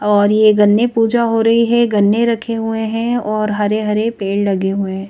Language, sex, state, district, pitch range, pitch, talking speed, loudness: Hindi, female, Madhya Pradesh, Bhopal, 205-230 Hz, 215 Hz, 200 wpm, -15 LUFS